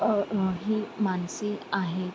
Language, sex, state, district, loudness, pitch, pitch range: Marathi, female, Maharashtra, Sindhudurg, -29 LUFS, 200 Hz, 185-210 Hz